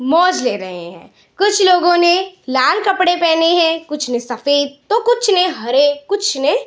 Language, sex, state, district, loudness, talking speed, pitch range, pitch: Hindi, female, Bihar, Saharsa, -15 LUFS, 190 wpm, 270-375 Hz, 335 Hz